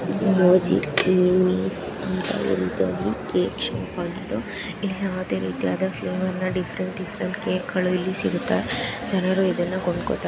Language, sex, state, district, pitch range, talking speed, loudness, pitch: Kannada, female, Karnataka, Bijapur, 180-190 Hz, 115 wpm, -24 LUFS, 185 Hz